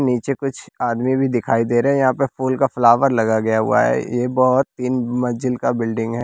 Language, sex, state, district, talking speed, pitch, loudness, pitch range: Hindi, male, Bihar, West Champaran, 220 wpm, 125 Hz, -18 LUFS, 115-130 Hz